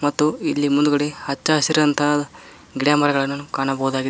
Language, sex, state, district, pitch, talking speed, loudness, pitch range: Kannada, male, Karnataka, Koppal, 145 Hz, 100 wpm, -20 LUFS, 140-150 Hz